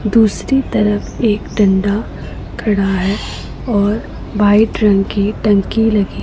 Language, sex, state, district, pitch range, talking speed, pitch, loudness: Hindi, female, Punjab, Pathankot, 200-220 Hz, 115 wpm, 210 Hz, -15 LUFS